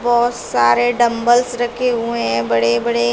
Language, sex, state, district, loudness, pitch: Hindi, female, Uttar Pradesh, Shamli, -16 LUFS, 235 Hz